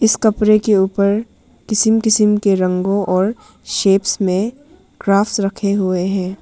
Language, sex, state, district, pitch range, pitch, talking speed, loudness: Hindi, female, Arunachal Pradesh, Papum Pare, 195-215 Hz, 200 Hz, 130 wpm, -16 LUFS